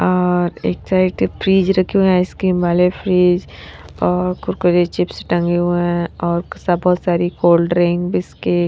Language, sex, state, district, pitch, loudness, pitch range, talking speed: Hindi, female, Haryana, Rohtak, 175 Hz, -16 LUFS, 170-180 Hz, 160 wpm